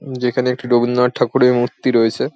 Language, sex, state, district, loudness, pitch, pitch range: Bengali, male, West Bengal, Jhargram, -16 LUFS, 125 Hz, 120-125 Hz